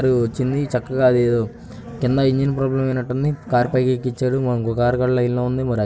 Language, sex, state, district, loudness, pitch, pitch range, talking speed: Telugu, male, Andhra Pradesh, Guntur, -20 LUFS, 125 Hz, 120-130 Hz, 185 wpm